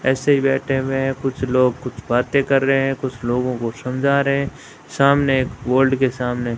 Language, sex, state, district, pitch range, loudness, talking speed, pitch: Hindi, male, Rajasthan, Bikaner, 125-135 Hz, -19 LUFS, 210 wpm, 135 Hz